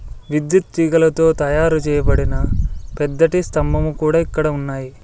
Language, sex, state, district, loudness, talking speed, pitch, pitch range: Telugu, male, Andhra Pradesh, Sri Satya Sai, -17 LUFS, 105 wpm, 155 Hz, 140-165 Hz